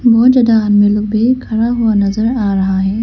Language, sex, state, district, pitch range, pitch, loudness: Hindi, female, Arunachal Pradesh, Lower Dibang Valley, 205-235 Hz, 220 Hz, -12 LUFS